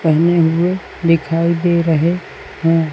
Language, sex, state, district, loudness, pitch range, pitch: Hindi, male, Chhattisgarh, Raipur, -16 LUFS, 165-170 Hz, 165 Hz